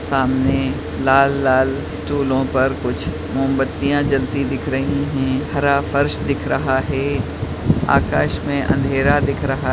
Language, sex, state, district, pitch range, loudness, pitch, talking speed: Hindi, male, Bihar, Madhepura, 130-140 Hz, -19 LUFS, 135 Hz, 130 wpm